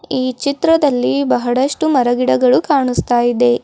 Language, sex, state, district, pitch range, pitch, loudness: Kannada, female, Karnataka, Bidar, 240-280 Hz, 255 Hz, -15 LUFS